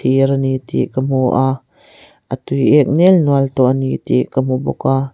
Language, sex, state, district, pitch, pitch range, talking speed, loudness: Mizo, female, Mizoram, Aizawl, 130 Hz, 130-135 Hz, 220 wpm, -15 LUFS